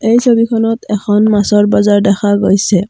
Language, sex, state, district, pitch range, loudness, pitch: Assamese, female, Assam, Kamrup Metropolitan, 200-225 Hz, -11 LUFS, 205 Hz